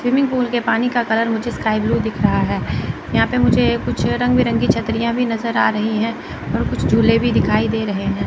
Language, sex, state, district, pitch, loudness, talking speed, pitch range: Hindi, female, Chandigarh, Chandigarh, 230 Hz, -18 LUFS, 230 wpm, 220-240 Hz